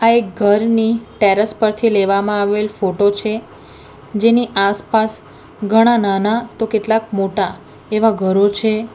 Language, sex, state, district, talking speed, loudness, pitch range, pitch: Gujarati, female, Gujarat, Valsad, 125 wpm, -16 LUFS, 205-225 Hz, 215 Hz